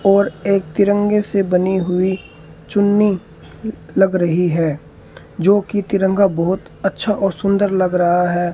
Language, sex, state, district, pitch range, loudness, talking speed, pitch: Hindi, male, Rajasthan, Bikaner, 175-200 Hz, -17 LUFS, 140 wpm, 190 Hz